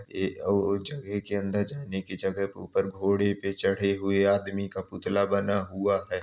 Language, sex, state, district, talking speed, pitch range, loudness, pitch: Hindi, male, Uttar Pradesh, Jalaun, 175 wpm, 95-100 Hz, -28 LUFS, 100 Hz